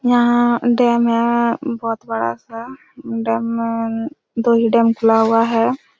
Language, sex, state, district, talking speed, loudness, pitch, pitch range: Hindi, female, Chhattisgarh, Raigarh, 130 wpm, -17 LUFS, 230 Hz, 230-240 Hz